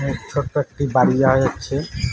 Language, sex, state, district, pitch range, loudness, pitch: Bengali, male, West Bengal, Alipurduar, 130-140 Hz, -19 LUFS, 135 Hz